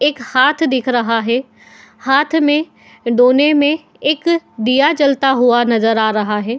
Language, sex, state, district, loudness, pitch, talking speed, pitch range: Hindi, female, Uttar Pradesh, Muzaffarnagar, -14 LUFS, 260 Hz, 155 wpm, 240-290 Hz